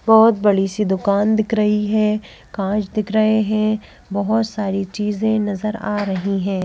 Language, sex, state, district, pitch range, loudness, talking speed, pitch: Hindi, female, Madhya Pradesh, Bhopal, 200-215 Hz, -19 LUFS, 160 wpm, 210 Hz